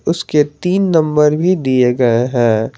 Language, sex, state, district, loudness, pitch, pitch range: Hindi, male, Jharkhand, Garhwa, -14 LUFS, 150 Hz, 125-165 Hz